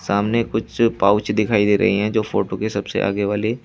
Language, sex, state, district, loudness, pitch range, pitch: Hindi, male, Uttar Pradesh, Shamli, -19 LUFS, 100-110 Hz, 105 Hz